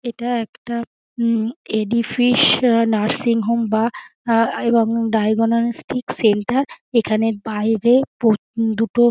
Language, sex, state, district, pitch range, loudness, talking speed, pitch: Bengali, female, West Bengal, Dakshin Dinajpur, 225-240 Hz, -18 LUFS, 110 wpm, 230 Hz